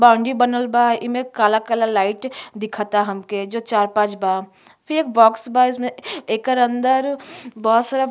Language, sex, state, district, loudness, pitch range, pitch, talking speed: Bhojpuri, female, Uttar Pradesh, Ghazipur, -19 LUFS, 210-250 Hz, 235 Hz, 170 wpm